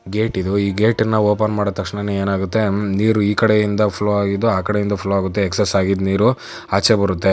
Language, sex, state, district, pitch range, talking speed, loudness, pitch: Kannada, female, Karnataka, Chamarajanagar, 100-105 Hz, 190 wpm, -18 LUFS, 100 Hz